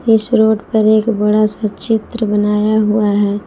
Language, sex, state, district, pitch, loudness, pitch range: Hindi, female, Jharkhand, Palamu, 215 Hz, -14 LUFS, 210-220 Hz